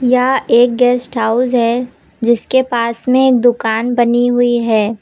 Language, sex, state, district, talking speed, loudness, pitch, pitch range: Hindi, female, Uttar Pradesh, Lucknow, 155 wpm, -13 LUFS, 245 Hz, 235-250 Hz